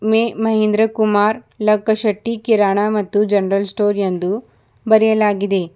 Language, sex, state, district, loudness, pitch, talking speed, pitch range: Kannada, female, Karnataka, Bidar, -16 LUFS, 210 Hz, 105 wpm, 205-220 Hz